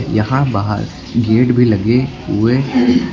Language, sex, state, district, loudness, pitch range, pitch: Hindi, male, Uttar Pradesh, Lucknow, -15 LUFS, 110-125 Hz, 120 Hz